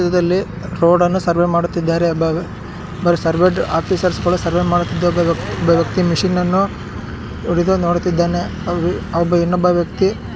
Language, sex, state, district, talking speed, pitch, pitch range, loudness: Kannada, male, Karnataka, Shimoga, 120 wpm, 175 Hz, 170-180 Hz, -17 LUFS